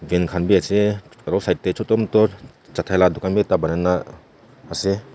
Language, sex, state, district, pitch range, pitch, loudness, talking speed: Nagamese, male, Nagaland, Kohima, 90-105 Hz, 95 Hz, -20 LUFS, 200 wpm